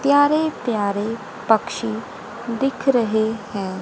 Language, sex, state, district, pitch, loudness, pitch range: Hindi, female, Haryana, Rohtak, 230 Hz, -21 LUFS, 210-270 Hz